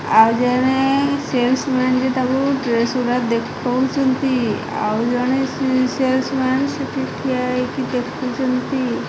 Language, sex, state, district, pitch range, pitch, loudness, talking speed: Odia, female, Odisha, Khordha, 250-265 Hz, 255 Hz, -19 LUFS, 120 wpm